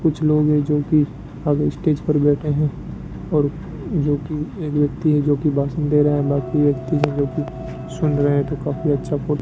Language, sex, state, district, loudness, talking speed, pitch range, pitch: Hindi, male, Rajasthan, Bikaner, -20 LUFS, 180 wpm, 145-150 Hz, 150 Hz